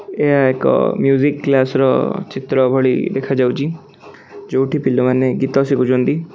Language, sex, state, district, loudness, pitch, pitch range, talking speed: Odia, male, Odisha, Khordha, -16 LUFS, 135 Hz, 130-145 Hz, 115 wpm